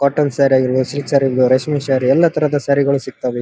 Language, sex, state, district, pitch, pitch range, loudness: Kannada, male, Karnataka, Dharwad, 140 Hz, 130-145 Hz, -15 LUFS